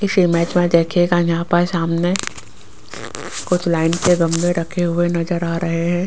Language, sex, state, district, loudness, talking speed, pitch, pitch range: Hindi, female, Rajasthan, Jaipur, -18 LUFS, 170 wpm, 175 Hz, 170-175 Hz